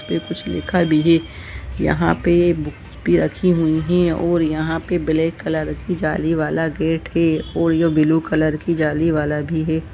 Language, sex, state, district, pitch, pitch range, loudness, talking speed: Hindi, male, Jharkhand, Jamtara, 160 Hz, 155-165 Hz, -19 LUFS, 175 wpm